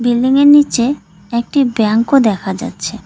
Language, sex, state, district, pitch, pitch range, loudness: Bengali, female, West Bengal, Cooch Behar, 235 Hz, 215-265 Hz, -13 LUFS